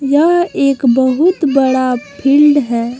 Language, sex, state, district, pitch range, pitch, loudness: Hindi, female, Jharkhand, Palamu, 255-295 Hz, 275 Hz, -12 LUFS